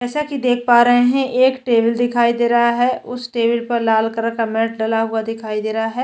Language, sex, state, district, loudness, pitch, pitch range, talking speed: Hindi, female, Chhattisgarh, Jashpur, -17 LUFS, 235 Hz, 225-245 Hz, 250 wpm